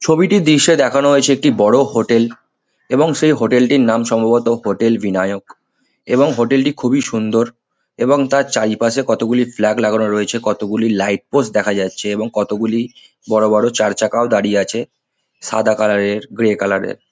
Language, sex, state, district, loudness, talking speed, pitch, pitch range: Bengali, male, West Bengal, Malda, -15 LUFS, 160 wpm, 115 Hz, 105-130 Hz